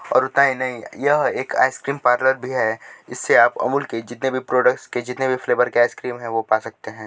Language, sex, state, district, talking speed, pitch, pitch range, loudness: Hindi, male, Uttar Pradesh, Deoria, 235 wpm, 125 Hz, 115-130 Hz, -20 LUFS